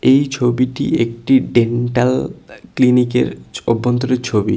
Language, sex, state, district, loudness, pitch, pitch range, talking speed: Bengali, male, West Bengal, Cooch Behar, -16 LUFS, 125 Hz, 115-130 Hz, 120 wpm